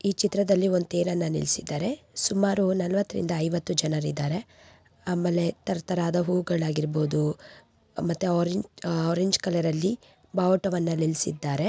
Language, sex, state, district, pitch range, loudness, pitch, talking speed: Kannada, female, Karnataka, Bijapur, 165-190 Hz, -26 LUFS, 175 Hz, 105 wpm